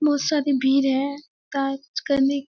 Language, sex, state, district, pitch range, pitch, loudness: Hindi, female, Bihar, Kishanganj, 275-290 Hz, 280 Hz, -23 LUFS